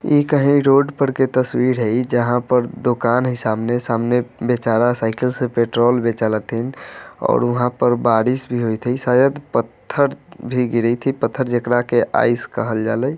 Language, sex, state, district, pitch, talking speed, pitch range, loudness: Bajjika, male, Bihar, Vaishali, 120 Hz, 175 wpm, 115-130 Hz, -18 LUFS